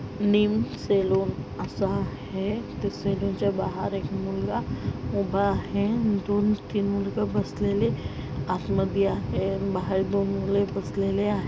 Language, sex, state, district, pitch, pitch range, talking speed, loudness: Marathi, female, Maharashtra, Aurangabad, 200 Hz, 195-205 Hz, 135 wpm, -27 LUFS